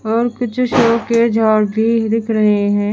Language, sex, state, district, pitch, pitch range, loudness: Hindi, female, Haryana, Charkhi Dadri, 225 Hz, 215-230 Hz, -15 LUFS